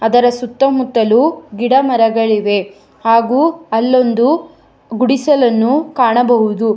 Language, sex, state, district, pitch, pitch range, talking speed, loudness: Kannada, female, Karnataka, Bangalore, 240 Hz, 225-260 Hz, 70 wpm, -13 LUFS